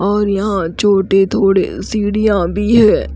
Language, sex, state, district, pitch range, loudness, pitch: Hindi, female, Haryana, Rohtak, 195-210 Hz, -14 LUFS, 200 Hz